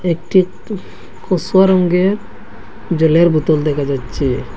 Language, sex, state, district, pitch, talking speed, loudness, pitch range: Bengali, male, Assam, Hailakandi, 175 Hz, 105 wpm, -15 LUFS, 155-190 Hz